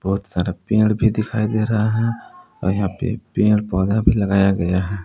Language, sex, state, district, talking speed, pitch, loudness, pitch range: Hindi, male, Jharkhand, Palamu, 200 wpm, 105 Hz, -19 LUFS, 95-110 Hz